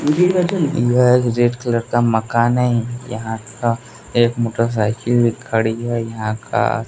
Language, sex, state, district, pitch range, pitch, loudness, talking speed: Hindi, male, Bihar, West Champaran, 115-120 Hz, 120 Hz, -18 LUFS, 130 wpm